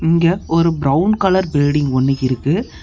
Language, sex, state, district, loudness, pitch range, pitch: Tamil, male, Tamil Nadu, Namakkal, -16 LUFS, 140-175 Hz, 160 Hz